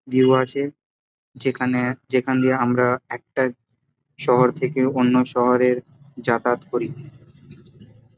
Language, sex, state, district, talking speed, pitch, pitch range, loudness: Bengali, male, West Bengal, Jhargram, 105 wpm, 125 Hz, 125-130 Hz, -21 LUFS